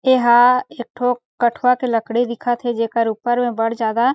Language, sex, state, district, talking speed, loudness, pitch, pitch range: Chhattisgarhi, female, Chhattisgarh, Sarguja, 200 wpm, -18 LUFS, 240 Hz, 230-245 Hz